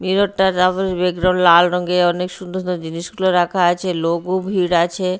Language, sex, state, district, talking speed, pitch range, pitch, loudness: Bengali, female, Odisha, Nuapada, 160 wpm, 175-185 Hz, 180 Hz, -17 LUFS